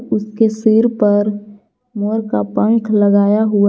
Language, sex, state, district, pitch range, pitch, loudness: Hindi, female, Jharkhand, Garhwa, 205-220 Hz, 210 Hz, -15 LUFS